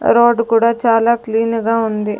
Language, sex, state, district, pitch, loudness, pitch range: Telugu, female, Andhra Pradesh, Sri Satya Sai, 230 Hz, -14 LUFS, 225-230 Hz